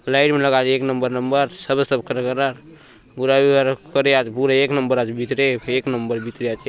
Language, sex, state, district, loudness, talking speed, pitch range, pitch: Halbi, male, Chhattisgarh, Bastar, -19 LUFS, 225 wpm, 125-140 Hz, 135 Hz